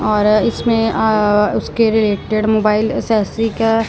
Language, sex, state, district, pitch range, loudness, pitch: Hindi, male, Punjab, Kapurthala, 210-225 Hz, -15 LUFS, 220 Hz